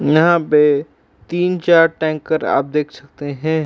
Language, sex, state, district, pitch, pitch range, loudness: Hindi, male, Uttar Pradesh, Jalaun, 155 Hz, 150-165 Hz, -16 LUFS